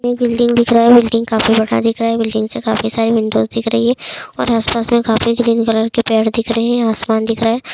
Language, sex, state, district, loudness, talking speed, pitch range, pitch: Hindi, female, Chhattisgarh, Raigarh, -14 LUFS, 250 wpm, 225-235 Hz, 230 Hz